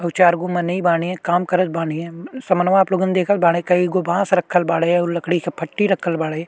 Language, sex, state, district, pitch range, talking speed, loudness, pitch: Bhojpuri, male, Uttar Pradesh, Ghazipur, 170-185 Hz, 240 wpm, -18 LUFS, 175 Hz